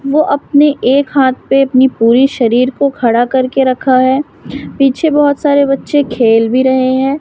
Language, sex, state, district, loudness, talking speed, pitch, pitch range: Hindi, female, Madhya Pradesh, Umaria, -11 LUFS, 175 wpm, 265 Hz, 255-285 Hz